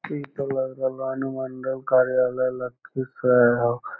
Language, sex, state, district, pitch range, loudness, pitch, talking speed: Magahi, male, Bihar, Lakhisarai, 125-130 Hz, -24 LUFS, 130 Hz, 120 wpm